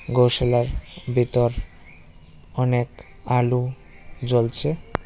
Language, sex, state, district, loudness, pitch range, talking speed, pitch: Bengali, male, West Bengal, Jalpaiguri, -22 LUFS, 80-125 Hz, 60 wpm, 120 Hz